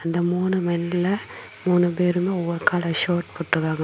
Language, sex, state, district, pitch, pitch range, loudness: Tamil, female, Tamil Nadu, Kanyakumari, 175 Hz, 170-180 Hz, -23 LUFS